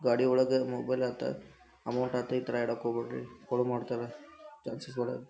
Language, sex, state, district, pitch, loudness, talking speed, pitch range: Kannada, male, Karnataka, Dharwad, 125 Hz, -33 LUFS, 160 wpm, 120-130 Hz